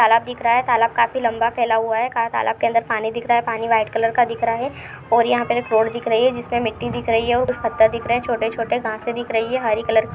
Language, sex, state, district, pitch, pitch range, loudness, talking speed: Hindi, female, Chhattisgarh, Balrampur, 230 Hz, 225-240 Hz, -19 LUFS, 300 wpm